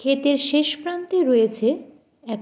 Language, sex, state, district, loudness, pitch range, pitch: Bengali, female, West Bengal, Jalpaiguri, -21 LUFS, 255-300 Hz, 285 Hz